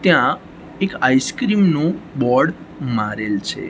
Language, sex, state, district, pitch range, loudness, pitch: Gujarati, male, Gujarat, Gandhinagar, 125-175 Hz, -19 LUFS, 155 Hz